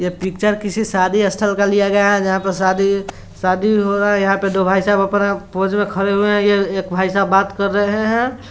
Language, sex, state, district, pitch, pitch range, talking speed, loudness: Hindi, male, Bihar, Sitamarhi, 200 Hz, 195-205 Hz, 255 wpm, -16 LUFS